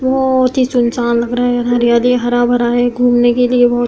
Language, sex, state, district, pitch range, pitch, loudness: Hindi, female, Uttar Pradesh, Hamirpur, 240-250 Hz, 245 Hz, -13 LUFS